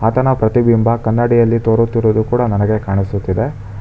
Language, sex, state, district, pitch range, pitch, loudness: Kannada, male, Karnataka, Bangalore, 105-115 Hz, 115 Hz, -14 LUFS